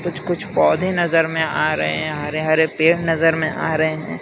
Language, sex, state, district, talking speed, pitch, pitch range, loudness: Hindi, male, Gujarat, Valsad, 225 wpm, 160 Hz, 155-170 Hz, -18 LUFS